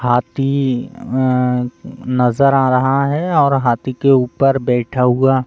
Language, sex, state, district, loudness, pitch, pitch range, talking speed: Hindi, male, Bihar, Gopalganj, -15 LUFS, 130 Hz, 125-135 Hz, 130 wpm